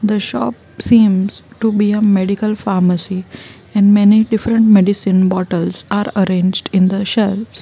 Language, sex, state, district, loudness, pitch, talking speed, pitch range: English, female, Gujarat, Valsad, -14 LUFS, 200 Hz, 140 wpm, 185-215 Hz